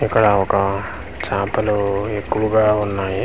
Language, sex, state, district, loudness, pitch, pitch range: Telugu, male, Andhra Pradesh, Manyam, -19 LUFS, 100 Hz, 100-105 Hz